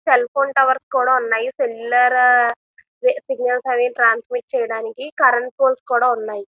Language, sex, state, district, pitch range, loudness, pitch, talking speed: Telugu, female, Andhra Pradesh, Visakhapatnam, 240-265 Hz, -17 LUFS, 250 Hz, 120 wpm